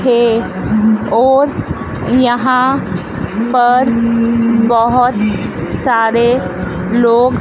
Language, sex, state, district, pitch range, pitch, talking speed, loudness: Hindi, female, Madhya Pradesh, Dhar, 230-250 Hz, 235 Hz, 55 wpm, -13 LUFS